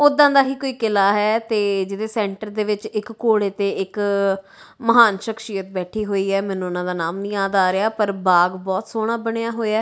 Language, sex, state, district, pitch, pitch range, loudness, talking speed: Punjabi, female, Punjab, Kapurthala, 210 Hz, 195-225 Hz, -20 LUFS, 210 wpm